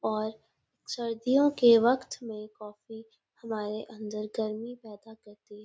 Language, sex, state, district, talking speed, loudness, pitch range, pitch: Hindi, female, Uttarakhand, Uttarkashi, 65 wpm, -29 LUFS, 215-230 Hz, 220 Hz